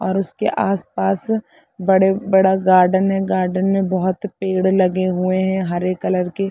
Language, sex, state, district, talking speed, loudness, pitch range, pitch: Hindi, female, Chhattisgarh, Balrampur, 165 wpm, -18 LUFS, 185-195 Hz, 190 Hz